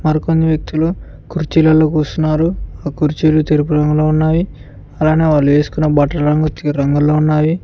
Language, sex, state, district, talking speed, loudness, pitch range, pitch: Telugu, male, Telangana, Mahabubabad, 135 wpm, -14 LUFS, 150-155 Hz, 155 Hz